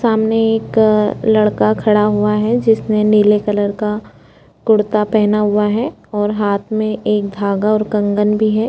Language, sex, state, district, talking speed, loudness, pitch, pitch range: Hindi, female, Chhattisgarh, Korba, 160 wpm, -15 LUFS, 210 Hz, 210-220 Hz